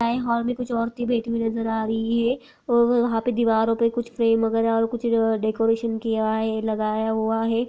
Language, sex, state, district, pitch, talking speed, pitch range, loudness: Hindi, female, Uttar Pradesh, Jyotiba Phule Nagar, 230 Hz, 210 wpm, 225-235 Hz, -23 LUFS